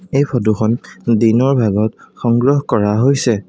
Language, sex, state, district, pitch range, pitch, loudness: Assamese, male, Assam, Sonitpur, 110-135 Hz, 120 Hz, -15 LUFS